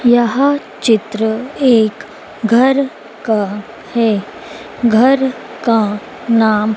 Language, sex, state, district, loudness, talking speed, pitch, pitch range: Hindi, female, Madhya Pradesh, Dhar, -14 LUFS, 80 wpm, 230 Hz, 215-250 Hz